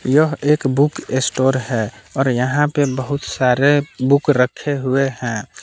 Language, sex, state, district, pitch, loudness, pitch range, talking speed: Hindi, male, Jharkhand, Palamu, 135 Hz, -18 LUFS, 130-145 Hz, 150 wpm